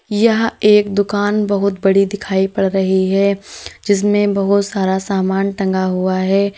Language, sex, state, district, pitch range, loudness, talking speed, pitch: Hindi, female, Uttar Pradesh, Lalitpur, 190-205 Hz, -15 LUFS, 145 wpm, 200 Hz